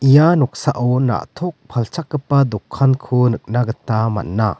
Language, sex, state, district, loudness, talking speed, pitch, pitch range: Garo, male, Meghalaya, West Garo Hills, -18 LUFS, 105 wpm, 125 Hz, 115-145 Hz